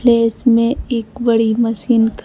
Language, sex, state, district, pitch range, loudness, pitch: Hindi, female, Bihar, Kaimur, 225-240 Hz, -15 LUFS, 230 Hz